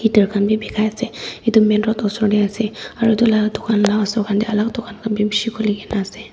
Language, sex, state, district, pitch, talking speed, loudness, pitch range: Nagamese, female, Nagaland, Dimapur, 215 Hz, 245 wpm, -18 LUFS, 210-220 Hz